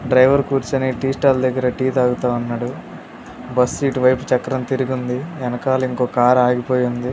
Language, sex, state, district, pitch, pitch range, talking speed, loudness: Telugu, male, Andhra Pradesh, Guntur, 130 Hz, 125-130 Hz, 150 wpm, -18 LUFS